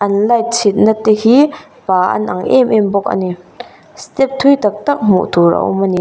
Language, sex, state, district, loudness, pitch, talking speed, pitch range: Mizo, female, Mizoram, Aizawl, -13 LUFS, 215 Hz, 210 wpm, 195-255 Hz